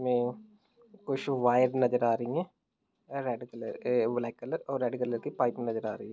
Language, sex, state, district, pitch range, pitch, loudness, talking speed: Hindi, male, Bihar, Muzaffarpur, 120-140 Hz, 125 Hz, -31 LUFS, 185 wpm